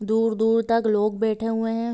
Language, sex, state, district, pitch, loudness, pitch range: Hindi, female, Bihar, Sitamarhi, 225 Hz, -22 LUFS, 220-225 Hz